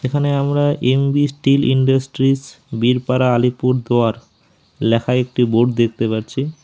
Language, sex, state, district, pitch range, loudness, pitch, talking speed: Bengali, male, West Bengal, Alipurduar, 120-140 Hz, -17 LUFS, 130 Hz, 110 wpm